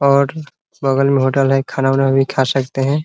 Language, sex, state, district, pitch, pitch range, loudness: Hindi, male, Bihar, Muzaffarpur, 135 Hz, 135-140 Hz, -16 LUFS